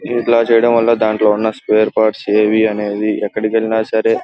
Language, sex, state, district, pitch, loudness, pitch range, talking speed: Telugu, male, Andhra Pradesh, Guntur, 110 Hz, -14 LUFS, 105-115 Hz, 185 wpm